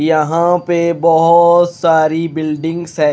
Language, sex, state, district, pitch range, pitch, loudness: Hindi, male, Haryana, Rohtak, 160-170 Hz, 165 Hz, -13 LUFS